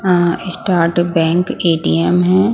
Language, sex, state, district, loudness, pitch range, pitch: Hindi, female, Punjab, Pathankot, -15 LUFS, 165-180 Hz, 175 Hz